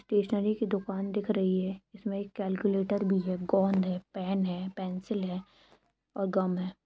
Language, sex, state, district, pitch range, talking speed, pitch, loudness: Hindi, female, Jharkhand, Sahebganj, 185-205 Hz, 175 wpm, 195 Hz, -31 LUFS